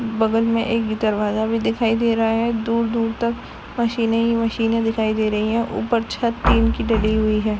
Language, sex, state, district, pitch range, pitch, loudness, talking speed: Hindi, female, Uttar Pradesh, Jalaun, 220-230 Hz, 225 Hz, -20 LUFS, 205 wpm